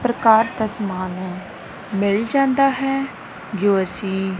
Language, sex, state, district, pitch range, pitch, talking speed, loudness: Punjabi, female, Punjab, Kapurthala, 190-250 Hz, 205 Hz, 110 wpm, -20 LUFS